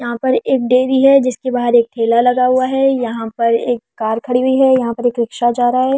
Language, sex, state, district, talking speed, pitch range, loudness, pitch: Hindi, female, Delhi, New Delhi, 260 wpm, 235-260 Hz, -14 LUFS, 245 Hz